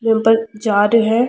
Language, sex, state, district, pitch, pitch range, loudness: Rajasthani, female, Rajasthan, Churu, 225 Hz, 220-225 Hz, -15 LUFS